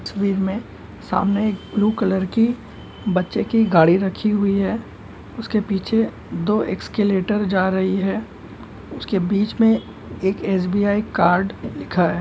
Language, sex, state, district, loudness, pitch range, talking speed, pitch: Hindi, male, Bihar, Darbhanga, -20 LUFS, 190-215 Hz, 130 wpm, 200 Hz